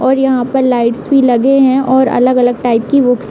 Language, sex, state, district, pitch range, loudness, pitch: Hindi, female, Uttar Pradesh, Hamirpur, 245-265 Hz, -11 LUFS, 255 Hz